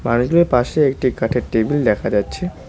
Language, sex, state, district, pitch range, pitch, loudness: Bengali, male, West Bengal, Cooch Behar, 120-170 Hz, 135 Hz, -17 LUFS